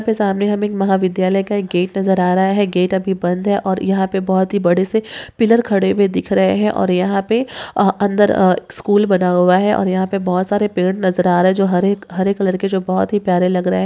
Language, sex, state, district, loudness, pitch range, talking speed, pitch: Hindi, female, Rajasthan, Nagaur, -16 LUFS, 185-200 Hz, 255 wpm, 190 Hz